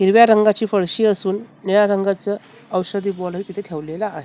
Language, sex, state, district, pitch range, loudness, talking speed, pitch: Marathi, female, Maharashtra, Mumbai Suburban, 190-215 Hz, -19 LUFS, 140 wpm, 200 Hz